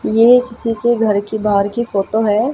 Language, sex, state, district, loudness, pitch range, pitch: Hindi, female, Haryana, Jhajjar, -15 LUFS, 210-235 Hz, 220 Hz